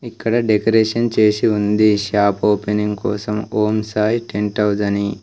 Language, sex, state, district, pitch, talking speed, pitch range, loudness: Telugu, male, Telangana, Komaram Bheem, 105 Hz, 135 wpm, 105-110 Hz, -17 LUFS